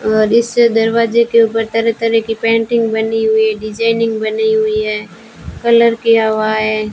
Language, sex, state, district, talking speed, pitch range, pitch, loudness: Hindi, female, Rajasthan, Bikaner, 175 wpm, 220-230 Hz, 225 Hz, -13 LUFS